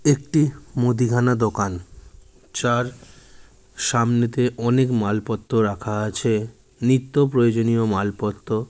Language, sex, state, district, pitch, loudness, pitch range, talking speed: Bengali, male, West Bengal, Jalpaiguri, 115 Hz, -21 LUFS, 105-125 Hz, 85 wpm